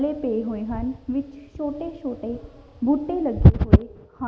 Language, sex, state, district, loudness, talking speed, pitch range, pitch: Punjabi, female, Punjab, Kapurthala, -23 LUFS, 155 wpm, 240-295 Hz, 275 Hz